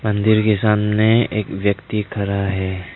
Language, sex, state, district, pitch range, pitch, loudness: Hindi, male, Arunachal Pradesh, Lower Dibang Valley, 100-110 Hz, 105 Hz, -18 LUFS